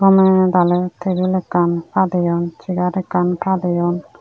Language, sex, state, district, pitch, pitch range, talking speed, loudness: Chakma, female, Tripura, Unakoti, 180 Hz, 175-185 Hz, 115 wpm, -17 LUFS